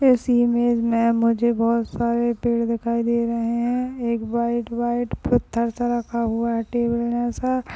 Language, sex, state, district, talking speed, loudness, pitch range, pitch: Hindi, female, Maharashtra, Nagpur, 170 wpm, -22 LUFS, 235-240 Hz, 235 Hz